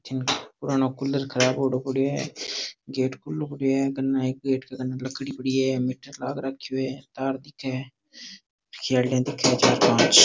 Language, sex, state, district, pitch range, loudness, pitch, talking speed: Marwari, male, Rajasthan, Nagaur, 130-135 Hz, -25 LUFS, 135 Hz, 180 wpm